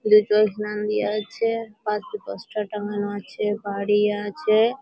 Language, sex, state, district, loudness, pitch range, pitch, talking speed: Bengali, female, West Bengal, Malda, -24 LUFS, 205-215 Hz, 210 Hz, 110 wpm